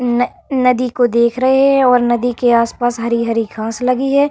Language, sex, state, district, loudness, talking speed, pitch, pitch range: Hindi, female, Uttar Pradesh, Varanasi, -14 LUFS, 180 wpm, 245 Hz, 235-255 Hz